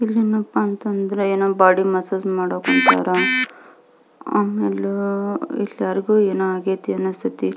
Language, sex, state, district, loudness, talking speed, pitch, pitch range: Kannada, female, Karnataka, Belgaum, -19 LUFS, 95 wpm, 190 Hz, 130-200 Hz